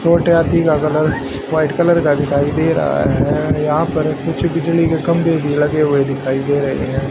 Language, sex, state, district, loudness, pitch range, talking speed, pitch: Hindi, male, Haryana, Charkhi Dadri, -16 LUFS, 145-165 Hz, 205 wpm, 155 Hz